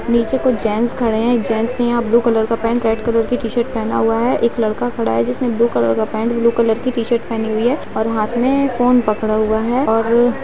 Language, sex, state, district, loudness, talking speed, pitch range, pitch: Hindi, female, Bihar, Gaya, -17 LUFS, 255 wpm, 220-240 Hz, 230 Hz